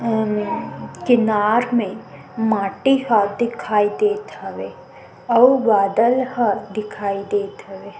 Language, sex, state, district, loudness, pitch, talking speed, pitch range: Chhattisgarhi, female, Chhattisgarh, Sukma, -19 LUFS, 215 Hz, 110 wpm, 200-240 Hz